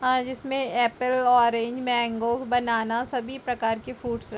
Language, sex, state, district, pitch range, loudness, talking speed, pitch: Hindi, female, Chhattisgarh, Bilaspur, 235-255 Hz, -25 LUFS, 135 wpm, 245 Hz